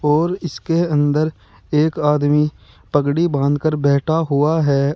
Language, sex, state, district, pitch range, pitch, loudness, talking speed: Hindi, male, Uttar Pradesh, Saharanpur, 145-160 Hz, 150 Hz, -18 LUFS, 135 wpm